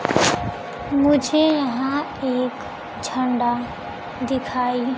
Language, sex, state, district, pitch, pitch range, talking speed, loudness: Hindi, female, Bihar, Kaimur, 260 Hz, 250-280 Hz, 60 wpm, -21 LUFS